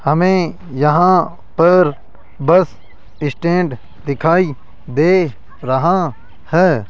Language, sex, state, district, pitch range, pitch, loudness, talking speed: Hindi, male, Rajasthan, Jaipur, 125-180 Hz, 155 Hz, -15 LUFS, 80 wpm